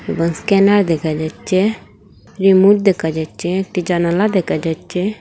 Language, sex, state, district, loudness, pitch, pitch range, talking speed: Bengali, female, Assam, Hailakandi, -16 LUFS, 185 Hz, 165-200 Hz, 125 wpm